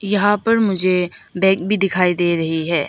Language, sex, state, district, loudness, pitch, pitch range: Hindi, female, Arunachal Pradesh, Lower Dibang Valley, -17 LUFS, 190 Hz, 175-205 Hz